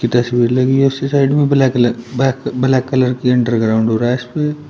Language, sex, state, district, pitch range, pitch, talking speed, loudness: Hindi, male, Uttar Pradesh, Shamli, 120-135 Hz, 130 Hz, 205 wpm, -15 LUFS